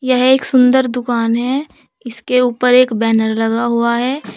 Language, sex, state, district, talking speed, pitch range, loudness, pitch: Hindi, female, Uttar Pradesh, Saharanpur, 165 wpm, 235-255 Hz, -14 LUFS, 250 Hz